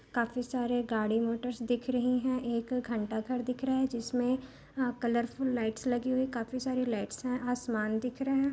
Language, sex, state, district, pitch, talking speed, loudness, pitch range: Hindi, female, Maharashtra, Aurangabad, 245 Hz, 185 wpm, -32 LUFS, 235-255 Hz